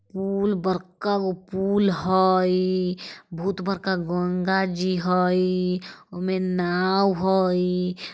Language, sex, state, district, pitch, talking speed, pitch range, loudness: Bajjika, female, Bihar, Vaishali, 185 Hz, 105 wpm, 180-190 Hz, -23 LUFS